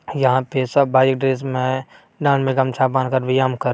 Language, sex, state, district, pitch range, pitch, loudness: Maithili, male, Bihar, Bhagalpur, 130-135 Hz, 130 Hz, -18 LUFS